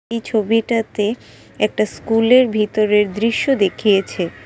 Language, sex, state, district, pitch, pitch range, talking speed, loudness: Bengali, female, Assam, Kamrup Metropolitan, 215 Hz, 190-225 Hz, 105 wpm, -17 LUFS